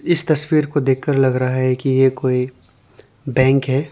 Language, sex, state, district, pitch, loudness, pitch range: Hindi, male, Arunachal Pradesh, Lower Dibang Valley, 130 Hz, -17 LUFS, 130-145 Hz